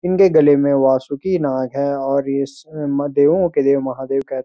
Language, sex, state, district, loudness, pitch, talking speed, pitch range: Hindi, male, Uttarakhand, Uttarkashi, -17 LUFS, 140 Hz, 190 wpm, 135-145 Hz